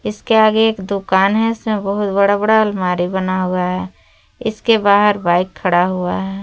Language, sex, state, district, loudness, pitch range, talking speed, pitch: Hindi, female, Jharkhand, Palamu, -16 LUFS, 180-215 Hz, 175 wpm, 200 Hz